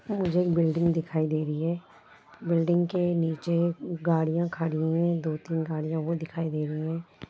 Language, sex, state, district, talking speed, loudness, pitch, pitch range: Hindi, female, Jharkhand, Jamtara, 175 wpm, -28 LUFS, 165 Hz, 160-170 Hz